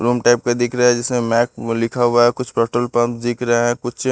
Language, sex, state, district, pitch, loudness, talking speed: Hindi, male, Bihar, Patna, 120 Hz, -17 LUFS, 260 wpm